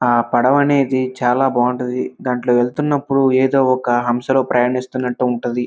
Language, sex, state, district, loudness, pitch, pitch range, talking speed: Telugu, male, Andhra Pradesh, Krishna, -17 LUFS, 125 Hz, 120-135 Hz, 125 wpm